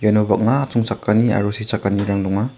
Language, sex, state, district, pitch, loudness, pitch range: Garo, male, Meghalaya, South Garo Hills, 110 Hz, -18 LUFS, 100-115 Hz